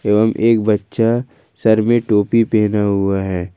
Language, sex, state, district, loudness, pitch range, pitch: Hindi, male, Jharkhand, Ranchi, -16 LUFS, 100-115 Hz, 110 Hz